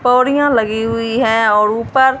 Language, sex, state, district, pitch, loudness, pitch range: Hindi, female, Punjab, Fazilka, 230 Hz, -14 LUFS, 225-260 Hz